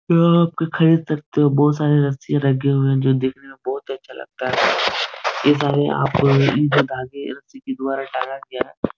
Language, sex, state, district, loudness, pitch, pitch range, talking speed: Hindi, male, Bihar, Supaul, -19 LUFS, 140 Hz, 135-150 Hz, 175 wpm